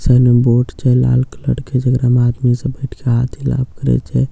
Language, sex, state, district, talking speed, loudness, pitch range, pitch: Maithili, male, Bihar, Katihar, 250 wpm, -15 LUFS, 120-130 Hz, 125 Hz